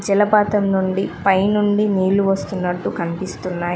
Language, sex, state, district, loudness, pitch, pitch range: Telugu, female, Telangana, Mahabubabad, -18 LUFS, 195 Hz, 185-205 Hz